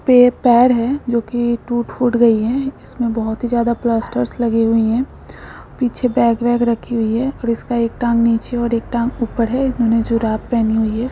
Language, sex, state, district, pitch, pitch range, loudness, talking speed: Hindi, female, Bihar, Supaul, 235 Hz, 230-245 Hz, -17 LUFS, 180 wpm